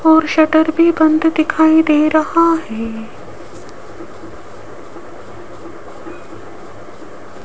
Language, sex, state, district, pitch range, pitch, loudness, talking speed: Hindi, female, Rajasthan, Jaipur, 310-320 Hz, 315 Hz, -13 LUFS, 65 wpm